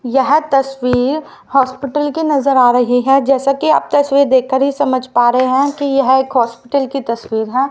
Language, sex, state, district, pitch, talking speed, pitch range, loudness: Hindi, female, Haryana, Rohtak, 270 Hz, 200 wpm, 255-280 Hz, -14 LUFS